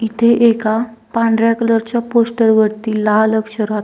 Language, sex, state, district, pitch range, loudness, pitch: Marathi, female, Maharashtra, Dhule, 220-230 Hz, -15 LUFS, 225 Hz